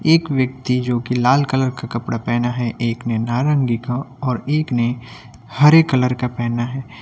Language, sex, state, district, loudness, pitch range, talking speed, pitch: Hindi, male, Uttar Pradesh, Lucknow, -18 LUFS, 120-135 Hz, 190 wpm, 125 Hz